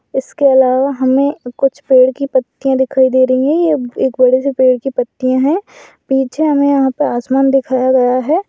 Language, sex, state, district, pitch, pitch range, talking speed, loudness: Hindi, female, Rajasthan, Churu, 265 Hz, 255-275 Hz, 190 wpm, -13 LUFS